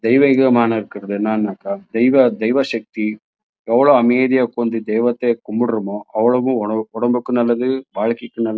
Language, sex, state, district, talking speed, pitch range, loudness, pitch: Tamil, male, Karnataka, Chamarajanagar, 120 wpm, 110-125 Hz, -17 LUFS, 120 Hz